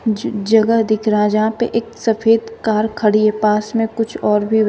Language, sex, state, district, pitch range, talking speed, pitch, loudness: Hindi, female, Uttar Pradesh, Shamli, 215-225 Hz, 230 wpm, 220 Hz, -16 LUFS